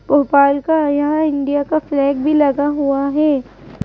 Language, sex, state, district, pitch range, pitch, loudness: Hindi, female, Madhya Pradesh, Bhopal, 280-300 Hz, 285 Hz, -16 LUFS